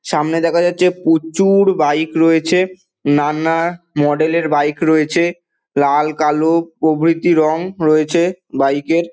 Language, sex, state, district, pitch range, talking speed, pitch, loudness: Bengali, male, West Bengal, Dakshin Dinajpur, 150-170 Hz, 120 wpm, 160 Hz, -15 LUFS